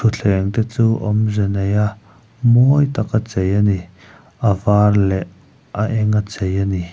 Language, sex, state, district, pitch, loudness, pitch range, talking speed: Mizo, male, Mizoram, Aizawl, 105 Hz, -17 LUFS, 100-110 Hz, 165 wpm